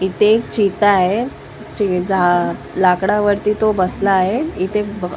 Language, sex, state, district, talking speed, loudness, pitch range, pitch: Marathi, female, Maharashtra, Mumbai Suburban, 160 wpm, -16 LUFS, 185-210 Hz, 200 Hz